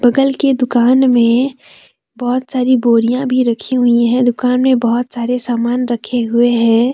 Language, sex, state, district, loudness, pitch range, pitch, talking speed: Hindi, female, Jharkhand, Deoghar, -14 LUFS, 235-255 Hz, 245 Hz, 165 wpm